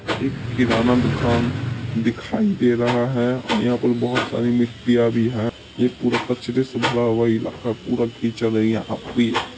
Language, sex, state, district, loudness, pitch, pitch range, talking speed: Maithili, male, Bihar, Supaul, -21 LUFS, 120 Hz, 115-125 Hz, 165 wpm